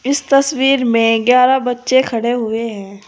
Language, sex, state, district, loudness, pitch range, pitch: Hindi, female, Uttar Pradesh, Saharanpur, -14 LUFS, 230-265 Hz, 245 Hz